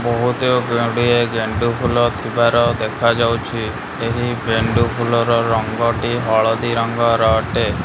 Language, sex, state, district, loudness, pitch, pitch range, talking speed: Odia, male, Odisha, Malkangiri, -17 LUFS, 115 Hz, 115-120 Hz, 100 wpm